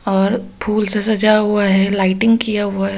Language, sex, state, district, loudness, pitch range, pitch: Hindi, female, Bihar, Katihar, -15 LUFS, 195-215 Hz, 210 Hz